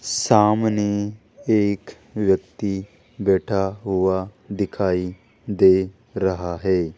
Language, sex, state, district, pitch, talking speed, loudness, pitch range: Hindi, male, Rajasthan, Jaipur, 100 Hz, 75 wpm, -21 LUFS, 95-105 Hz